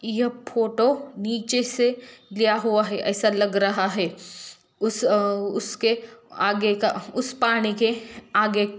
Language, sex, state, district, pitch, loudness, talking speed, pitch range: Hindi, female, Jharkhand, Jamtara, 215 Hz, -23 LUFS, 130 wpm, 205-230 Hz